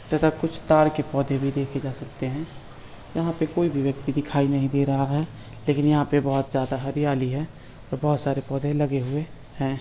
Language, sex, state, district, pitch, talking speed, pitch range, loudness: Hindi, male, Uttar Pradesh, Budaun, 140 Hz, 210 wpm, 135-150 Hz, -25 LUFS